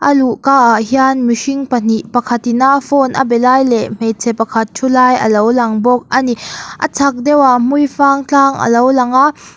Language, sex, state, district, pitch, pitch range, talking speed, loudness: Mizo, female, Mizoram, Aizawl, 255 Hz, 235-275 Hz, 190 wpm, -12 LUFS